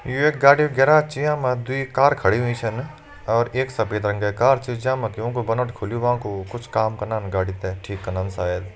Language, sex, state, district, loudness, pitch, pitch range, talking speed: Hindi, male, Uttarakhand, Uttarkashi, -21 LUFS, 120 Hz, 105-130 Hz, 245 wpm